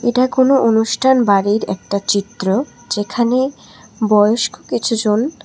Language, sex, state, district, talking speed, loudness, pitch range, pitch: Bengali, female, Tripura, West Tripura, 110 wpm, -16 LUFS, 205-255 Hz, 225 Hz